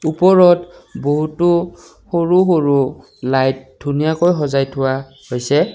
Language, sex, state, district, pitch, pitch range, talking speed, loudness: Assamese, male, Assam, Kamrup Metropolitan, 150 Hz, 135-175 Hz, 85 wpm, -16 LUFS